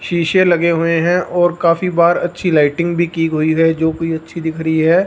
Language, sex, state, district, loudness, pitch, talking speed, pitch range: Hindi, male, Punjab, Fazilka, -15 LUFS, 170 Hz, 225 wpm, 160-175 Hz